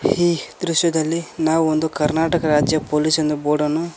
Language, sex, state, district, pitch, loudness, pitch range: Kannada, male, Karnataka, Koppal, 160 Hz, -19 LUFS, 150-165 Hz